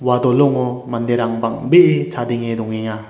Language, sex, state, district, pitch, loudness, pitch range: Garo, male, Meghalaya, West Garo Hills, 120 Hz, -17 LUFS, 115-125 Hz